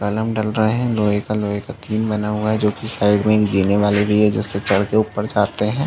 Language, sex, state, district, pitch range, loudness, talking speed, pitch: Hindi, male, Chhattisgarh, Bastar, 105-110 Hz, -18 LUFS, 255 wpm, 105 Hz